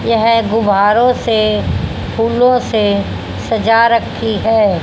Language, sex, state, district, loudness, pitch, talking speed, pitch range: Hindi, female, Haryana, Jhajjar, -13 LUFS, 225 Hz, 100 wpm, 215-230 Hz